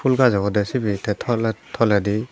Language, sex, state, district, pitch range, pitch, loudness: Chakma, male, Tripura, Dhalai, 105-120 Hz, 110 Hz, -21 LUFS